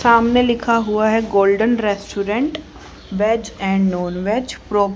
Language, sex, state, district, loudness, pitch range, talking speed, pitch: Hindi, female, Haryana, Charkhi Dadri, -18 LUFS, 200-230 Hz, 135 wpm, 215 Hz